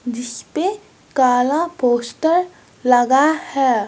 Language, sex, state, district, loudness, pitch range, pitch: Hindi, male, Bihar, West Champaran, -18 LUFS, 245-325 Hz, 260 Hz